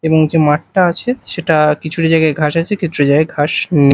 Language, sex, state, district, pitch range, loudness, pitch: Bengali, male, Odisha, Malkangiri, 150-170 Hz, -14 LUFS, 160 Hz